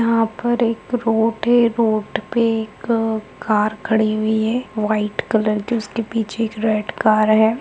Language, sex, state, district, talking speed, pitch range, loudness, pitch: Hindi, female, Bihar, Darbhanga, 165 wpm, 215-230 Hz, -19 LUFS, 225 Hz